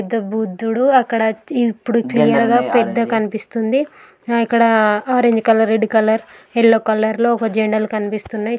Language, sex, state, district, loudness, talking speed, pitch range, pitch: Telugu, female, Andhra Pradesh, Guntur, -16 LUFS, 110 wpm, 220-235 Hz, 225 Hz